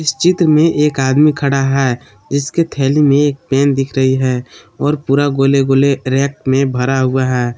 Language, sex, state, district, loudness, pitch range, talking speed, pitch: Hindi, male, Jharkhand, Palamu, -14 LUFS, 130-145 Hz, 180 wpm, 135 Hz